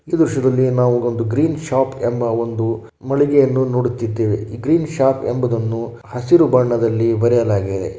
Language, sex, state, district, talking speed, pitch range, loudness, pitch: Kannada, male, Karnataka, Shimoga, 120 wpm, 115-135 Hz, -17 LUFS, 120 Hz